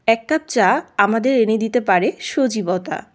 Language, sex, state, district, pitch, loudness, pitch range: Bengali, female, West Bengal, Jhargram, 225 Hz, -18 LUFS, 205-250 Hz